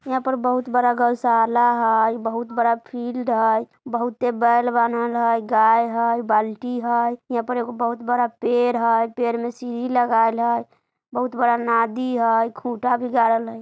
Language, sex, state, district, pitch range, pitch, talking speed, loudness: Bajjika, female, Bihar, Vaishali, 230-245 Hz, 235 Hz, 165 wpm, -21 LUFS